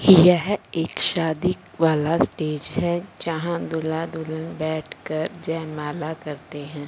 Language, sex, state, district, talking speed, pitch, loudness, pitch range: Hindi, male, Punjab, Fazilka, 115 wpm, 160 Hz, -23 LUFS, 155-170 Hz